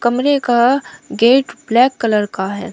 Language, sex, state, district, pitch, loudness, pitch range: Hindi, female, Uttar Pradesh, Shamli, 240 Hz, -15 LUFS, 205-260 Hz